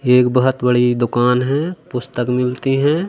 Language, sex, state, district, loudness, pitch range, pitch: Hindi, male, Madhya Pradesh, Katni, -17 LUFS, 125-135 Hz, 125 Hz